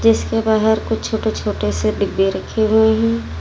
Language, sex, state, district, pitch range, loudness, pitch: Hindi, female, Uttar Pradesh, Lalitpur, 215-225 Hz, -17 LUFS, 220 Hz